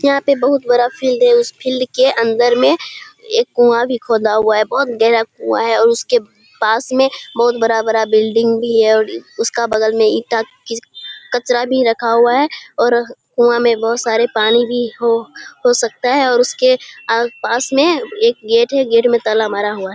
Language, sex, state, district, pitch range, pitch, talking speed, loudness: Hindi, female, Bihar, Kishanganj, 225-265 Hz, 240 Hz, 200 wpm, -14 LUFS